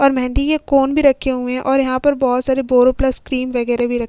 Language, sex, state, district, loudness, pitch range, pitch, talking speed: Hindi, female, Uttar Pradesh, Hamirpur, -16 LUFS, 250-275 Hz, 260 Hz, 290 wpm